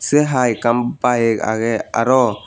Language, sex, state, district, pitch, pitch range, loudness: Chakma, male, Tripura, Unakoti, 120 Hz, 115-125 Hz, -17 LUFS